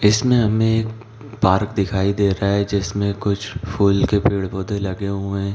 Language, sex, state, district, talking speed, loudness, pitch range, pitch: Hindi, male, Chhattisgarh, Balrampur, 185 wpm, -19 LUFS, 100-105 Hz, 100 Hz